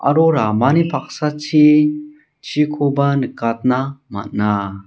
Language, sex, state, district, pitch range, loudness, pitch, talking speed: Garo, male, Meghalaya, South Garo Hills, 120-150 Hz, -17 LUFS, 140 Hz, 75 wpm